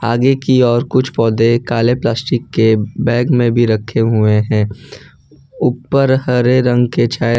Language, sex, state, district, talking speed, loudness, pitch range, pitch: Hindi, male, Gujarat, Valsad, 155 wpm, -14 LUFS, 115-130 Hz, 120 Hz